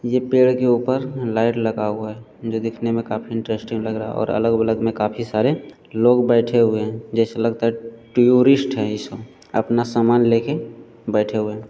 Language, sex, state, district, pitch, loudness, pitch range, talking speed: Hindi, male, Bihar, Jamui, 115 Hz, -19 LUFS, 110-120 Hz, 200 wpm